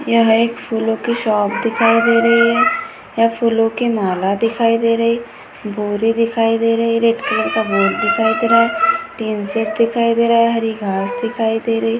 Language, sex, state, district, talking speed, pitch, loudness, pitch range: Hindi, female, Maharashtra, Sindhudurg, 210 wpm, 230 Hz, -16 LUFS, 225-235 Hz